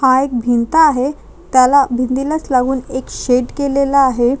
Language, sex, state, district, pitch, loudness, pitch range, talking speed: Marathi, female, Maharashtra, Chandrapur, 260 Hz, -14 LUFS, 255-280 Hz, 150 wpm